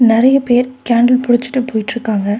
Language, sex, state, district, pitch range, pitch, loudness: Tamil, female, Tamil Nadu, Nilgiris, 225-255 Hz, 240 Hz, -14 LUFS